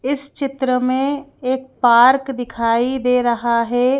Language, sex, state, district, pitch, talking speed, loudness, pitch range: Hindi, female, Madhya Pradesh, Bhopal, 255 Hz, 135 wpm, -17 LUFS, 240-270 Hz